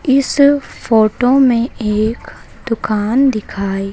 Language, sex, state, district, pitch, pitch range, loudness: Hindi, female, Madhya Pradesh, Dhar, 235 Hz, 215-270 Hz, -14 LUFS